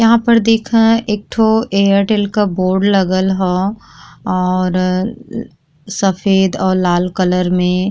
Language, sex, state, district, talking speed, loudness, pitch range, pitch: Bhojpuri, female, Uttar Pradesh, Gorakhpur, 115 wpm, -14 LUFS, 185-220 Hz, 195 Hz